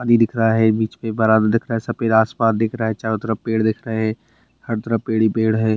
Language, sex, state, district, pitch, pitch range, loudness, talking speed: Hindi, male, Bihar, Bhagalpur, 110 Hz, 110-115 Hz, -19 LUFS, 260 wpm